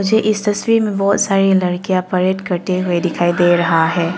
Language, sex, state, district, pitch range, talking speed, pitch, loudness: Hindi, female, Arunachal Pradesh, Longding, 175-200 Hz, 200 wpm, 185 Hz, -16 LUFS